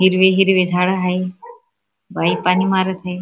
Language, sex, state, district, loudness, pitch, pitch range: Marathi, female, Maharashtra, Chandrapur, -16 LUFS, 185 Hz, 180-190 Hz